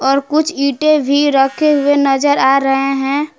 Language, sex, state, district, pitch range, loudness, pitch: Hindi, female, Jharkhand, Palamu, 270-295 Hz, -13 LUFS, 280 Hz